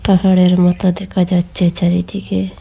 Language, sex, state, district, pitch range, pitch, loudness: Bengali, female, Assam, Hailakandi, 175-185 Hz, 180 Hz, -15 LUFS